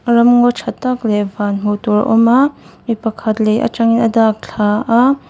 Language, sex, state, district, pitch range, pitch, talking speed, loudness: Mizo, female, Mizoram, Aizawl, 215-240 Hz, 225 Hz, 180 wpm, -14 LUFS